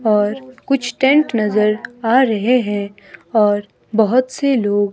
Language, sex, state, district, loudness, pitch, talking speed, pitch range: Hindi, female, Himachal Pradesh, Shimla, -16 LUFS, 220 Hz, 135 wpm, 205-255 Hz